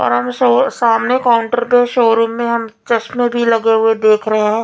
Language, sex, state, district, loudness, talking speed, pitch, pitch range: Hindi, female, Punjab, Fazilka, -14 LUFS, 205 wpm, 230 Hz, 220-240 Hz